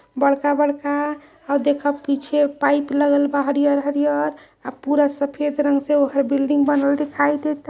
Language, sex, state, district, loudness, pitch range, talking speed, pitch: Hindi, male, Uttar Pradesh, Varanasi, -19 LUFS, 280-295 Hz, 150 wpm, 285 Hz